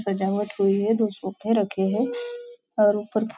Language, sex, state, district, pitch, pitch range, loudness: Hindi, female, Maharashtra, Nagpur, 210 Hz, 200-225 Hz, -24 LUFS